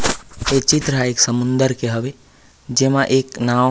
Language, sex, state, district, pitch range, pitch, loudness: Chhattisgarhi, male, Chhattisgarh, Raigarh, 115-135 Hz, 125 Hz, -17 LUFS